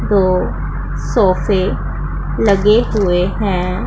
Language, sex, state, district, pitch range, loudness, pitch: Hindi, female, Punjab, Pathankot, 185-205 Hz, -16 LUFS, 190 Hz